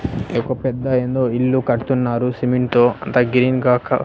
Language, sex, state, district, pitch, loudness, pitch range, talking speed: Telugu, male, Andhra Pradesh, Annamaya, 125 Hz, -18 LUFS, 120-130 Hz, 165 wpm